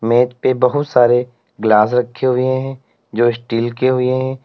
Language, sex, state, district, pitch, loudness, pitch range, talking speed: Hindi, male, Uttar Pradesh, Lalitpur, 125 Hz, -16 LUFS, 120-130 Hz, 175 wpm